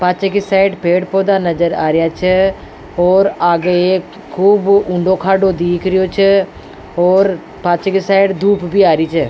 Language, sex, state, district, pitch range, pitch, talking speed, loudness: Rajasthani, female, Rajasthan, Nagaur, 175-195 Hz, 185 Hz, 175 wpm, -13 LUFS